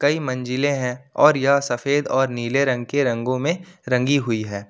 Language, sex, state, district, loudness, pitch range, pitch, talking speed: Hindi, male, Jharkhand, Ranchi, -21 LUFS, 125-145 Hz, 135 Hz, 190 wpm